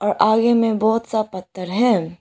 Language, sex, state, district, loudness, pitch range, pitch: Hindi, female, Arunachal Pradesh, Lower Dibang Valley, -18 LUFS, 185-230 Hz, 220 Hz